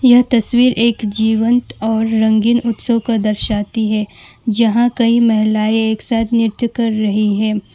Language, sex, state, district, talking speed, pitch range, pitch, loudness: Hindi, female, West Bengal, Alipurduar, 145 wpm, 215-235 Hz, 225 Hz, -15 LUFS